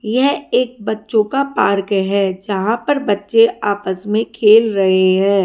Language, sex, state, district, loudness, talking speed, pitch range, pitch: Hindi, female, Haryana, Rohtak, -15 LUFS, 155 wpm, 195-230 Hz, 210 Hz